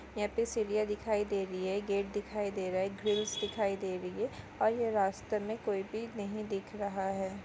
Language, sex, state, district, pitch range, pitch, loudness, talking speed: Hindi, female, Maharashtra, Nagpur, 195-215 Hz, 205 Hz, -35 LUFS, 215 wpm